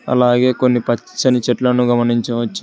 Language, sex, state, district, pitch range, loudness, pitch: Telugu, male, Telangana, Hyderabad, 120-125 Hz, -16 LUFS, 125 Hz